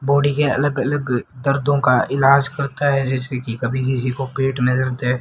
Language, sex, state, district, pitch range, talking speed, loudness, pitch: Hindi, male, Haryana, Rohtak, 125-140 Hz, 205 wpm, -19 LUFS, 135 Hz